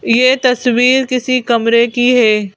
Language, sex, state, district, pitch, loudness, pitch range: Hindi, female, Madhya Pradesh, Bhopal, 245 Hz, -12 LUFS, 235-255 Hz